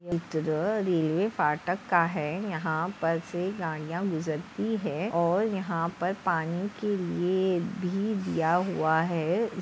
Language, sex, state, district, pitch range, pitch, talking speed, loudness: Hindi, female, Maharashtra, Dhule, 165-195 Hz, 175 Hz, 125 wpm, -29 LUFS